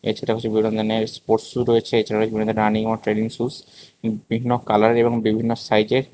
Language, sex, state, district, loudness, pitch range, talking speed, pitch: Bengali, male, Tripura, West Tripura, -21 LUFS, 110-115 Hz, 185 wpm, 110 Hz